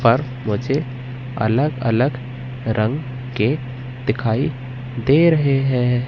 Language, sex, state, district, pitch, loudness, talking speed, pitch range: Hindi, male, Madhya Pradesh, Katni, 125 Hz, -20 LUFS, 100 wpm, 125-135 Hz